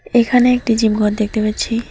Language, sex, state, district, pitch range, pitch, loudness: Bengali, female, West Bengal, Alipurduar, 215-240 Hz, 225 Hz, -15 LUFS